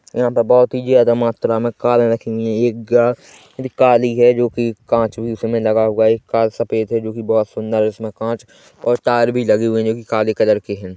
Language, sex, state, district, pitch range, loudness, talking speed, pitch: Hindi, male, Chhattisgarh, Korba, 110-120 Hz, -16 LUFS, 235 wpm, 115 Hz